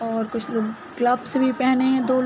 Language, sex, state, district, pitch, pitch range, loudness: Hindi, female, Uttar Pradesh, Jalaun, 250 Hz, 230-260 Hz, -22 LUFS